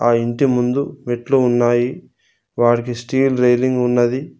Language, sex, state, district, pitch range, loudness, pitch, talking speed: Telugu, male, Telangana, Mahabubabad, 120-130 Hz, -17 LUFS, 125 Hz, 120 wpm